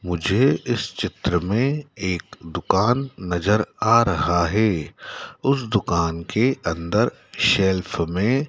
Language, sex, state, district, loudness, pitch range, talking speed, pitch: Hindi, male, Madhya Pradesh, Dhar, -21 LUFS, 85-120 Hz, 115 wpm, 100 Hz